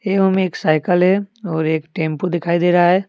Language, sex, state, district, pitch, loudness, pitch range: Hindi, male, Jharkhand, Deoghar, 175 Hz, -17 LUFS, 160-190 Hz